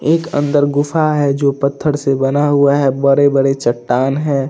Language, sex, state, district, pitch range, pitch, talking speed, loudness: Hindi, male, Andhra Pradesh, Chittoor, 135-145 Hz, 140 Hz, 185 wpm, -14 LUFS